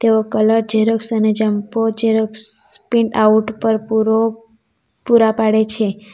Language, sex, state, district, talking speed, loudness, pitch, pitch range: Gujarati, female, Gujarat, Valsad, 115 wpm, -16 LUFS, 220 Hz, 215-225 Hz